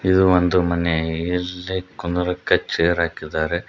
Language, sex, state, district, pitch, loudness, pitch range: Kannada, male, Karnataka, Koppal, 90 Hz, -20 LUFS, 85-90 Hz